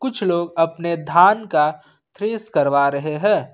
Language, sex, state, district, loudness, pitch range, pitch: Hindi, male, Jharkhand, Ranchi, -19 LUFS, 150-210 Hz, 170 Hz